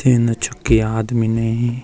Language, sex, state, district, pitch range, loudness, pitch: Garhwali, male, Uttarakhand, Uttarkashi, 115-120 Hz, -18 LUFS, 115 Hz